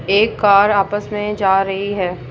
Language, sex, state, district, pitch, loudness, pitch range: Hindi, female, Rajasthan, Jaipur, 200 Hz, -16 LUFS, 195-210 Hz